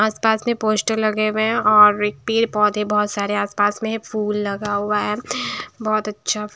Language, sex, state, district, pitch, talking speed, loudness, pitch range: Hindi, female, Punjab, Kapurthala, 210 Hz, 190 wpm, -19 LUFS, 210-220 Hz